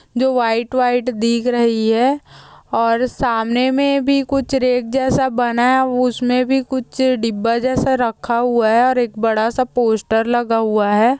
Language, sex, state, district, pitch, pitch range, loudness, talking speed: Hindi, female, Uttar Pradesh, Jyotiba Phule Nagar, 245 Hz, 230-260 Hz, -17 LUFS, 170 wpm